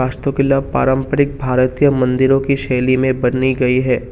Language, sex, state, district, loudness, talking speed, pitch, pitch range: Hindi, male, Assam, Kamrup Metropolitan, -15 LUFS, 160 wpm, 130 Hz, 130-135 Hz